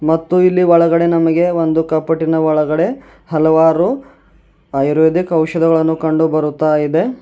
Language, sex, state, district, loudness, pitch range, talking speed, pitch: Kannada, male, Karnataka, Bidar, -14 LUFS, 160-170 Hz, 110 wpm, 160 Hz